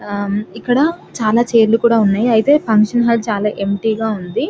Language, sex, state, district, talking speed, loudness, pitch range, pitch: Telugu, female, Telangana, Nalgonda, 160 wpm, -15 LUFS, 210-235 Hz, 220 Hz